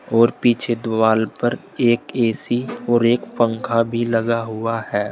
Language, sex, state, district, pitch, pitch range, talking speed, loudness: Hindi, male, Uttar Pradesh, Saharanpur, 115 Hz, 115-120 Hz, 150 wpm, -19 LUFS